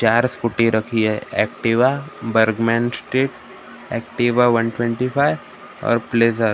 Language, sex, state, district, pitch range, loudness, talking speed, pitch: Hindi, male, Maharashtra, Gondia, 115-125 Hz, -19 LUFS, 130 wpm, 115 Hz